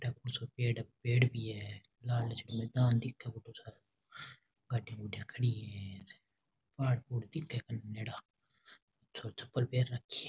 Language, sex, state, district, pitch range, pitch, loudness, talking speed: Rajasthani, male, Rajasthan, Nagaur, 110-125 Hz, 120 Hz, -37 LUFS, 125 wpm